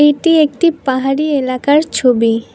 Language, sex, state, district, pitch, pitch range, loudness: Bengali, female, West Bengal, Cooch Behar, 280 Hz, 255-305 Hz, -13 LUFS